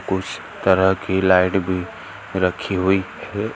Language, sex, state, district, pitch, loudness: Hindi, male, Chhattisgarh, Raigarh, 95 Hz, -20 LUFS